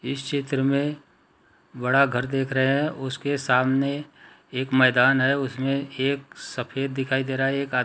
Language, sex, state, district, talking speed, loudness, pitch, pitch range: Hindi, male, Chhattisgarh, Bastar, 160 wpm, -24 LUFS, 135 Hz, 130-140 Hz